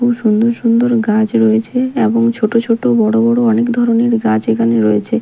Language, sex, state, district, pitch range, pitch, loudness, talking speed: Bengali, female, Odisha, Malkangiri, 220-235 Hz, 230 Hz, -13 LUFS, 175 wpm